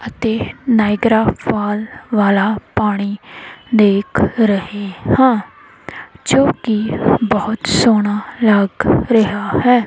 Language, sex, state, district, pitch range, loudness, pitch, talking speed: Punjabi, female, Punjab, Kapurthala, 205-225 Hz, -15 LUFS, 215 Hz, 90 wpm